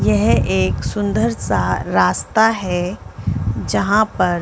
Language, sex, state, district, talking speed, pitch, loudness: Hindi, female, Chhattisgarh, Bilaspur, 110 wpm, 115 Hz, -18 LUFS